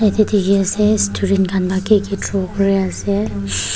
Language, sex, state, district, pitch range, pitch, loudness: Nagamese, female, Nagaland, Dimapur, 185-205 Hz, 195 Hz, -17 LUFS